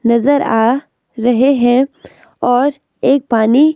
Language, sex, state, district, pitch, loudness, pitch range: Hindi, female, Himachal Pradesh, Shimla, 260 Hz, -14 LUFS, 240-285 Hz